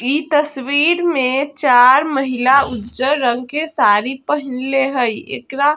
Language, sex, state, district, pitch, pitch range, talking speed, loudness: Bajjika, female, Bihar, Vaishali, 270 Hz, 255-290 Hz, 135 wpm, -15 LUFS